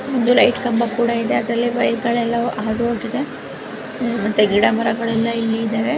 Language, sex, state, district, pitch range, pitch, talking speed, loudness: Kannada, female, Karnataka, Bijapur, 225-240 Hz, 235 Hz, 140 wpm, -18 LUFS